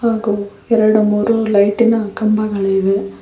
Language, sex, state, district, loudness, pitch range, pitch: Kannada, female, Karnataka, Koppal, -15 LUFS, 200-225 Hz, 215 Hz